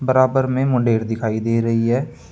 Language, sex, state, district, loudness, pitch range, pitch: Hindi, male, Uttar Pradesh, Saharanpur, -19 LUFS, 115-130 Hz, 120 Hz